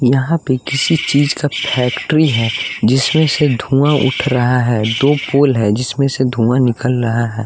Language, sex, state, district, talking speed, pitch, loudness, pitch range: Hindi, male, Bihar, West Champaran, 175 wpm, 130 Hz, -14 LUFS, 120-145 Hz